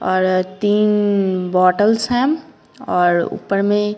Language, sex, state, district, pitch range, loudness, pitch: Hindi, female, Bihar, Patna, 185-210 Hz, -17 LUFS, 205 Hz